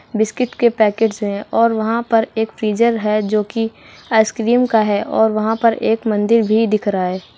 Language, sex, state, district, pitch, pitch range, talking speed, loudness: Hindi, female, Uttar Pradesh, Lucknow, 220 Hz, 215-230 Hz, 195 wpm, -16 LUFS